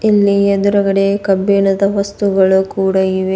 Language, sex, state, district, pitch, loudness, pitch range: Kannada, female, Karnataka, Bidar, 195 Hz, -13 LUFS, 190-200 Hz